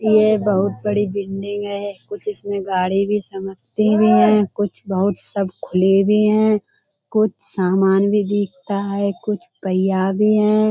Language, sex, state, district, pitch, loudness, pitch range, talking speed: Hindi, female, Uttar Pradesh, Budaun, 205 Hz, -18 LUFS, 195-215 Hz, 145 wpm